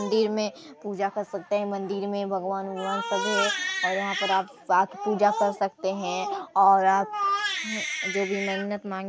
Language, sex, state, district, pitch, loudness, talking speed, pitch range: Hindi, male, Chhattisgarh, Sarguja, 200 Hz, -26 LUFS, 160 wpm, 195-210 Hz